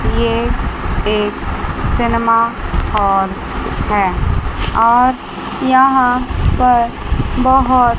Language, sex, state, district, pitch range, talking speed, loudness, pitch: Hindi, female, Chandigarh, Chandigarh, 210-255 Hz, 70 wpm, -15 LUFS, 235 Hz